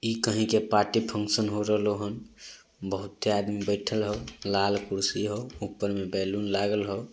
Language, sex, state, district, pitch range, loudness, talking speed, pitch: Magahi, male, Bihar, Samastipur, 100-110 Hz, -28 LUFS, 175 wpm, 105 Hz